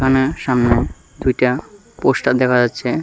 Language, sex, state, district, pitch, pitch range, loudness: Bengali, male, Tripura, West Tripura, 130 Hz, 125-135 Hz, -17 LUFS